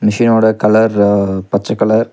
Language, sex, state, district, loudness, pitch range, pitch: Tamil, male, Tamil Nadu, Nilgiris, -12 LUFS, 100-110 Hz, 105 Hz